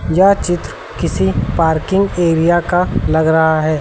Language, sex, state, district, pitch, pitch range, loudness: Hindi, male, Uttar Pradesh, Lucknow, 165 Hz, 160-175 Hz, -14 LUFS